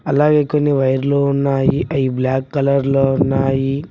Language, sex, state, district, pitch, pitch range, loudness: Telugu, male, Telangana, Mahabubabad, 140 Hz, 135-140 Hz, -16 LUFS